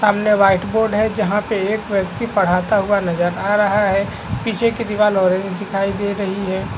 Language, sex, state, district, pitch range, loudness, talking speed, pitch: Hindi, male, Chhattisgarh, Raigarh, 195-210 Hz, -18 LUFS, 195 wpm, 200 Hz